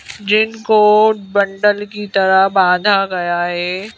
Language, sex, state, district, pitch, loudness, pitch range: Hindi, female, Madhya Pradesh, Bhopal, 200 Hz, -14 LUFS, 190-210 Hz